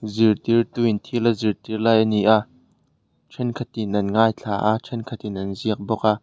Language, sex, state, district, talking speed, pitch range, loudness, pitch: Mizo, male, Mizoram, Aizawl, 175 wpm, 105-115 Hz, -21 LUFS, 110 Hz